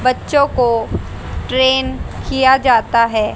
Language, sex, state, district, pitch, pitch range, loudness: Hindi, female, Haryana, Rohtak, 255 Hz, 230-265 Hz, -15 LUFS